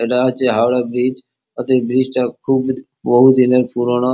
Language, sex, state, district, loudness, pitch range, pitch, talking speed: Bengali, male, West Bengal, Kolkata, -15 LUFS, 120-130 Hz, 125 Hz, 160 wpm